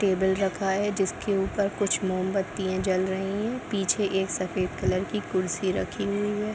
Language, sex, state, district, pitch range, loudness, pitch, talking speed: Hindi, female, Bihar, Gopalganj, 185-205 Hz, -27 LUFS, 195 Hz, 190 wpm